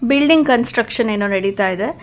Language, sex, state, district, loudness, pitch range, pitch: Kannada, female, Karnataka, Bangalore, -16 LUFS, 205-255 Hz, 235 Hz